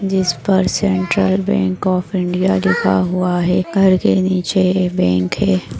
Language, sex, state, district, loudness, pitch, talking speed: Hindi, female, Maharashtra, Dhule, -16 LUFS, 175 Hz, 145 wpm